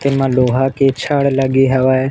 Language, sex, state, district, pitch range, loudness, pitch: Chhattisgarhi, male, Chhattisgarh, Bilaspur, 130-135 Hz, -14 LUFS, 135 Hz